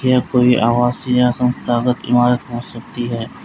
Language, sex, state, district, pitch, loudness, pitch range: Hindi, male, Uttar Pradesh, Lalitpur, 125 Hz, -16 LUFS, 120-125 Hz